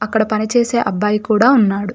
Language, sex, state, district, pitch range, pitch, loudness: Telugu, female, Telangana, Komaram Bheem, 210-235 Hz, 215 Hz, -15 LUFS